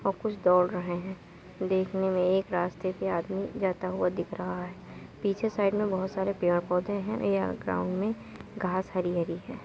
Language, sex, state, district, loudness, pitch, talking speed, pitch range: Hindi, female, Uttar Pradesh, Muzaffarnagar, -30 LUFS, 185 Hz, 180 wpm, 180-195 Hz